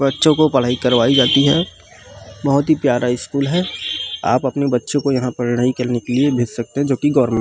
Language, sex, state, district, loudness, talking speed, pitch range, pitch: Chhattisgarhi, male, Chhattisgarh, Rajnandgaon, -17 LUFS, 200 wpm, 125-140 Hz, 135 Hz